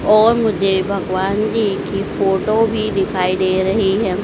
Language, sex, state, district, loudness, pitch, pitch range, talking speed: Hindi, female, Madhya Pradesh, Dhar, -17 LUFS, 195 Hz, 190-215 Hz, 155 wpm